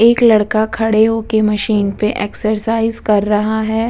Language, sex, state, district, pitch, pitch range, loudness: Hindi, female, Bihar, Vaishali, 220 Hz, 210-225 Hz, -15 LUFS